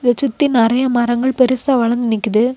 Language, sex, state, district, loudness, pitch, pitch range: Tamil, female, Tamil Nadu, Kanyakumari, -15 LUFS, 245 Hz, 235-260 Hz